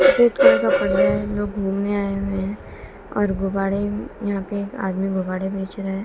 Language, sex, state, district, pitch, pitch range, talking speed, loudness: Hindi, female, Bihar, West Champaran, 195 Hz, 190-205 Hz, 140 wpm, -21 LUFS